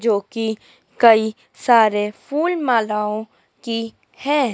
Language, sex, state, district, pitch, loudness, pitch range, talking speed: Hindi, female, Madhya Pradesh, Dhar, 225 Hz, -19 LUFS, 215-245 Hz, 90 wpm